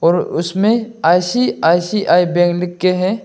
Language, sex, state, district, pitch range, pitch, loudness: Hindi, male, Arunachal Pradesh, Lower Dibang Valley, 175-210 Hz, 180 Hz, -15 LUFS